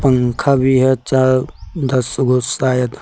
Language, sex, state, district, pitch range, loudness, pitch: Hindi, male, Jharkhand, Deoghar, 125-135 Hz, -15 LUFS, 130 Hz